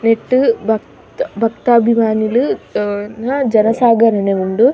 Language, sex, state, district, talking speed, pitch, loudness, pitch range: Tulu, female, Karnataka, Dakshina Kannada, 75 wpm, 225 Hz, -15 LUFS, 215-240 Hz